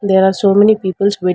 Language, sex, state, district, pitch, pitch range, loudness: English, female, Karnataka, Bangalore, 195 Hz, 190-200 Hz, -12 LUFS